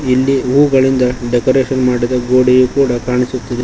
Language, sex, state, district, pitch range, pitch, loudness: Kannada, male, Karnataka, Koppal, 125-130 Hz, 130 Hz, -13 LUFS